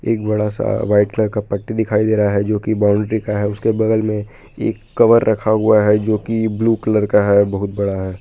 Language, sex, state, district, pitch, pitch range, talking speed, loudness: Hindi, male, Jharkhand, Palamu, 105 Hz, 105-110 Hz, 240 wpm, -17 LUFS